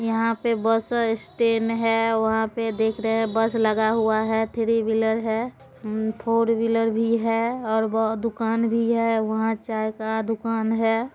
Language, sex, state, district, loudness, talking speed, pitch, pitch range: Maithili, female, Bihar, Supaul, -23 LUFS, 170 wpm, 225 Hz, 220-230 Hz